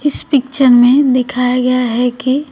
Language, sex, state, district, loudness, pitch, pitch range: Hindi, female, Uttar Pradesh, Shamli, -12 LUFS, 255 Hz, 250-275 Hz